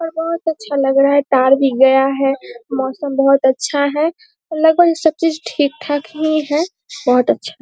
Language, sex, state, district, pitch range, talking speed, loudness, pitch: Hindi, female, Bihar, Saharsa, 275-325 Hz, 180 wpm, -15 LUFS, 290 Hz